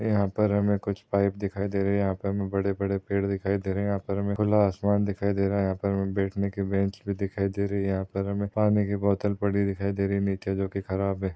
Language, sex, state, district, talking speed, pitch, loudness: Hindi, male, Maharashtra, Chandrapur, 280 wpm, 100 Hz, -27 LUFS